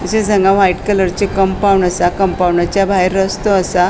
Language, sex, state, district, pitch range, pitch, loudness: Konkani, female, Goa, North and South Goa, 180-195 Hz, 190 Hz, -13 LUFS